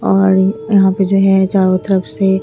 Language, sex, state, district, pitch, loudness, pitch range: Hindi, female, Bihar, Katihar, 195 Hz, -13 LUFS, 190-195 Hz